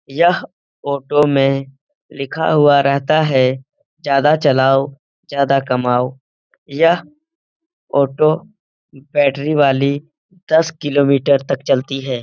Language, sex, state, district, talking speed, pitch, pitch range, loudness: Hindi, male, Bihar, Lakhisarai, 100 wpm, 140 Hz, 135-160 Hz, -16 LUFS